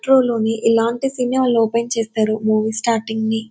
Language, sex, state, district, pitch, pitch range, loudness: Telugu, female, Andhra Pradesh, Anantapur, 230 Hz, 220-240 Hz, -18 LUFS